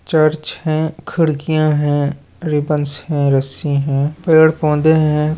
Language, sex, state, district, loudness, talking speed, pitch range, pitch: Hindi, male, Chhattisgarh, Raigarh, -16 LUFS, 120 wpm, 145-160 Hz, 155 Hz